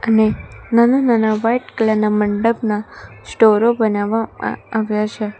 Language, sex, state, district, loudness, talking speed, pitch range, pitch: Gujarati, female, Gujarat, Valsad, -17 LUFS, 120 wpm, 215-230 Hz, 220 Hz